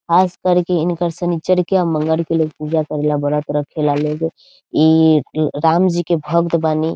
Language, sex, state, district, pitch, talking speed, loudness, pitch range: Bhojpuri, female, Bihar, Saran, 160 Hz, 170 wpm, -17 LUFS, 155-175 Hz